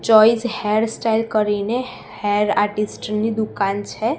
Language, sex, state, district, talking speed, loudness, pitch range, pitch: Gujarati, female, Gujarat, Gandhinagar, 115 wpm, -20 LUFS, 210-225 Hz, 215 Hz